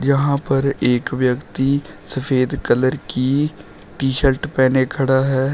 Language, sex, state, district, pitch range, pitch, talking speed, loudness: Hindi, male, Uttar Pradesh, Shamli, 130-140 Hz, 135 Hz, 130 wpm, -18 LUFS